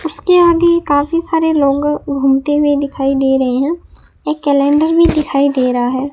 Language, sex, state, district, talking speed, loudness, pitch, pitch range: Hindi, male, Rajasthan, Bikaner, 175 wpm, -13 LUFS, 290 Hz, 275-320 Hz